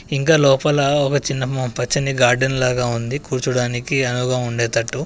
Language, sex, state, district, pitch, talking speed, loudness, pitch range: Telugu, male, Telangana, Adilabad, 130 Hz, 140 wpm, -18 LUFS, 125-140 Hz